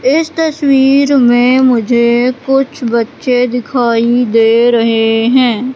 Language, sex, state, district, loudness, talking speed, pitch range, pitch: Hindi, female, Madhya Pradesh, Katni, -11 LUFS, 105 wpm, 235-265 Hz, 245 Hz